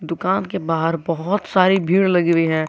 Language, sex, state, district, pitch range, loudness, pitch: Hindi, male, Jharkhand, Garhwa, 165-190 Hz, -18 LUFS, 175 Hz